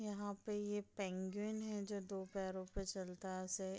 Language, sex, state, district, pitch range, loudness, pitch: Hindi, female, Bihar, Gopalganj, 190-205 Hz, -45 LUFS, 195 Hz